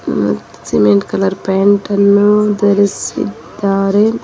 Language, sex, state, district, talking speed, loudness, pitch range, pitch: Kannada, female, Karnataka, Bangalore, 70 wpm, -13 LUFS, 195-205 Hz, 200 Hz